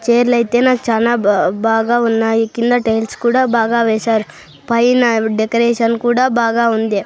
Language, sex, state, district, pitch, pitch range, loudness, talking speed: Telugu, male, Andhra Pradesh, Sri Satya Sai, 235 Hz, 225-240 Hz, -14 LUFS, 135 wpm